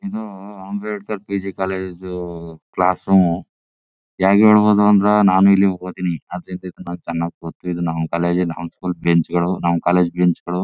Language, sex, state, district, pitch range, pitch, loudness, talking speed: Kannada, male, Karnataka, Chamarajanagar, 85-95 Hz, 90 Hz, -18 LUFS, 150 wpm